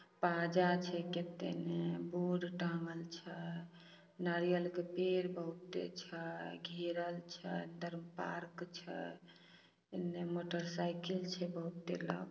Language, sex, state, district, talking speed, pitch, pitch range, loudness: Hindi, female, Bihar, Samastipur, 110 wpm, 175 Hz, 170-180 Hz, -41 LUFS